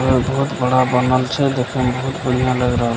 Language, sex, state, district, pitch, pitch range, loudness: Maithili, male, Bihar, Begusarai, 130 Hz, 125-130 Hz, -18 LUFS